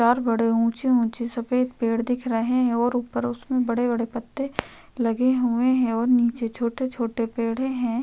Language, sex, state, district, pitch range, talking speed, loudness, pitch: Hindi, female, Uttar Pradesh, Varanasi, 230-250 Hz, 155 wpm, -24 LUFS, 240 Hz